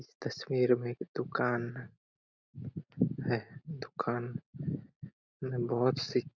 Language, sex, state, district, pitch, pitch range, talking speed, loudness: Hindi, male, Chhattisgarh, Korba, 125 Hz, 120-130 Hz, 95 wpm, -34 LUFS